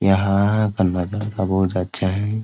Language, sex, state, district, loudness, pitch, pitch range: Hindi, male, Jharkhand, Sahebganj, -20 LUFS, 95 Hz, 95-105 Hz